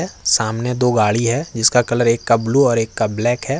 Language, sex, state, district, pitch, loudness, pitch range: Hindi, male, Jharkhand, Ranchi, 115 Hz, -17 LUFS, 110-125 Hz